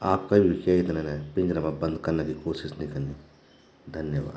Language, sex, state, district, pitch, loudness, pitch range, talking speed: Garhwali, male, Uttarakhand, Tehri Garhwal, 80 Hz, -27 LUFS, 75-90 Hz, 220 wpm